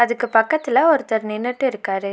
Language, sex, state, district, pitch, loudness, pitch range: Tamil, female, Tamil Nadu, Nilgiris, 240 Hz, -19 LUFS, 220-265 Hz